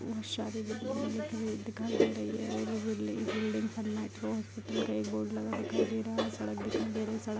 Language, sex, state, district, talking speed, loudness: Hindi, female, Bihar, Darbhanga, 210 wpm, -35 LUFS